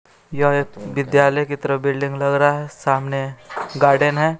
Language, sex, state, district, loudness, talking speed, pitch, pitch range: Hindi, female, Bihar, West Champaran, -19 LUFS, 165 wpm, 140 Hz, 140-145 Hz